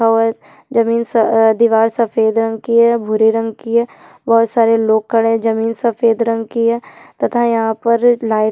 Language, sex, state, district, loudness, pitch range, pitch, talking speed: Hindi, female, Chhattisgarh, Jashpur, -14 LUFS, 225-235 Hz, 230 Hz, 195 wpm